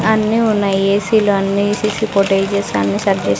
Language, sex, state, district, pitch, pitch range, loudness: Telugu, female, Andhra Pradesh, Sri Satya Sai, 200 Hz, 195-215 Hz, -15 LUFS